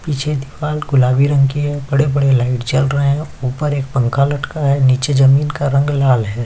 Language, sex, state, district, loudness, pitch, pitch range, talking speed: Hindi, male, Chhattisgarh, Kabirdham, -15 LUFS, 140 Hz, 130-145 Hz, 225 wpm